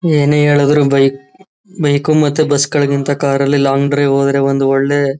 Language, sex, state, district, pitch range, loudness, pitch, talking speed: Kannada, male, Karnataka, Chamarajanagar, 140-150 Hz, -13 LUFS, 145 Hz, 160 wpm